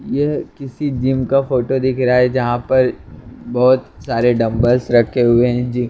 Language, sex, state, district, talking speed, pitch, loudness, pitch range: Hindi, male, Maharashtra, Mumbai Suburban, 175 wpm, 125 Hz, -16 LUFS, 120-130 Hz